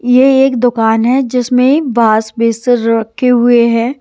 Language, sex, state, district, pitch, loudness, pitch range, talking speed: Hindi, female, Haryana, Jhajjar, 245 Hz, -11 LUFS, 230-255 Hz, 150 wpm